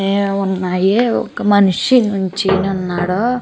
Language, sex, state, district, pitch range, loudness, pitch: Telugu, female, Andhra Pradesh, Chittoor, 190-205 Hz, -15 LUFS, 195 Hz